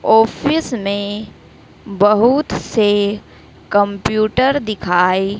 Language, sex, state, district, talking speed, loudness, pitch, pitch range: Hindi, female, Madhya Pradesh, Dhar, 65 wpm, -16 LUFS, 210 Hz, 200-225 Hz